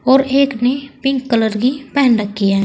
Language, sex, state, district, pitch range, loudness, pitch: Hindi, female, Uttar Pradesh, Saharanpur, 225-275 Hz, -16 LUFS, 260 Hz